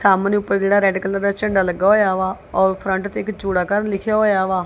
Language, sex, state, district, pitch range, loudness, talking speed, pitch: Punjabi, female, Punjab, Kapurthala, 190-205 Hz, -18 LUFS, 245 wpm, 195 Hz